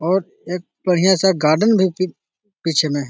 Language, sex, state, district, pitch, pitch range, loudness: Magahi, male, Bihar, Jahanabad, 180 Hz, 165-190 Hz, -18 LUFS